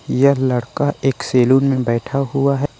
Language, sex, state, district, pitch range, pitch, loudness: Chhattisgarhi, male, Chhattisgarh, Korba, 125-140 Hz, 135 Hz, -17 LUFS